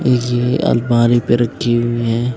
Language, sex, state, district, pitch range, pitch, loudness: Hindi, female, Uttar Pradesh, Lucknow, 120-125 Hz, 120 Hz, -15 LUFS